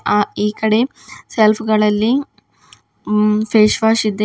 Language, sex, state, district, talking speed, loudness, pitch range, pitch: Kannada, female, Karnataka, Bidar, 100 wpm, -16 LUFS, 210-220 Hz, 215 Hz